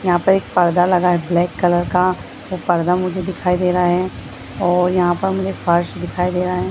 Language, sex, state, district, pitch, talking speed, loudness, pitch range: Hindi, female, Bihar, Bhagalpur, 180 Hz, 225 wpm, -17 LUFS, 175-185 Hz